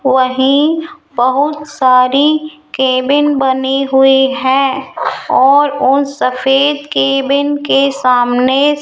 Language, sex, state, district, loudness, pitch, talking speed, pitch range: Hindi, female, Rajasthan, Jaipur, -12 LUFS, 275 Hz, 95 wpm, 260-290 Hz